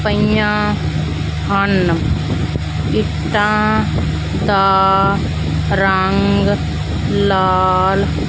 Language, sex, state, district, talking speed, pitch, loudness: Punjabi, female, Punjab, Fazilka, 45 wpm, 185 Hz, -15 LUFS